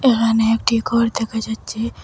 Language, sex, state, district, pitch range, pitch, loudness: Bengali, female, Assam, Hailakandi, 225-230 Hz, 225 Hz, -19 LUFS